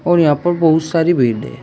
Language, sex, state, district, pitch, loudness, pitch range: Hindi, male, Uttar Pradesh, Shamli, 165 Hz, -14 LUFS, 150-175 Hz